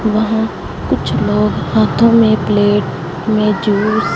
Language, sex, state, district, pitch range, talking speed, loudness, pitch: Hindi, female, Punjab, Fazilka, 205-220 Hz, 130 wpm, -14 LUFS, 215 Hz